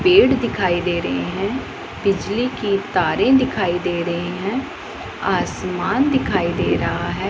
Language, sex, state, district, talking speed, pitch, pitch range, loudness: Hindi, female, Punjab, Pathankot, 140 wpm, 195 Hz, 175-255 Hz, -20 LUFS